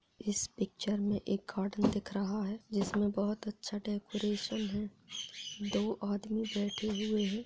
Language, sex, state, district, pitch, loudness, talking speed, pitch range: Hindi, male, Bihar, Lakhisarai, 205 Hz, -36 LUFS, 155 wpm, 205-215 Hz